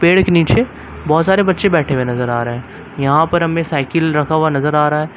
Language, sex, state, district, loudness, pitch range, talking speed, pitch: Hindi, male, Uttar Pradesh, Lucknow, -15 LUFS, 140-170 Hz, 255 wpm, 155 Hz